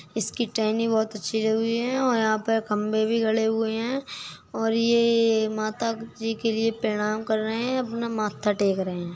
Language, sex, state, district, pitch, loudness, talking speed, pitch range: Hindi, female, Uttar Pradesh, Budaun, 225 Hz, -25 LUFS, 195 wpm, 215-230 Hz